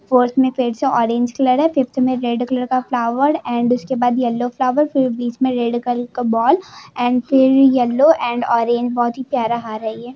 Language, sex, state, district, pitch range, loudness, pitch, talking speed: Hindi, female, Jharkhand, Jamtara, 240-265 Hz, -17 LUFS, 245 Hz, 205 wpm